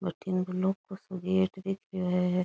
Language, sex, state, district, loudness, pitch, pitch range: Rajasthani, female, Rajasthan, Nagaur, -31 LUFS, 185 Hz, 180-190 Hz